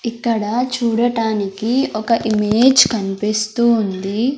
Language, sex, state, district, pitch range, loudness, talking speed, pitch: Telugu, female, Andhra Pradesh, Sri Satya Sai, 215-240 Hz, -17 LUFS, 80 wpm, 225 Hz